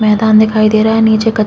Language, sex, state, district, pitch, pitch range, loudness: Hindi, female, Uttarakhand, Uttarkashi, 220 Hz, 215-220 Hz, -10 LUFS